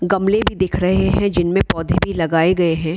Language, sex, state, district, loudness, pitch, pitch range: Hindi, female, Bihar, Kishanganj, -17 LUFS, 180 Hz, 165-190 Hz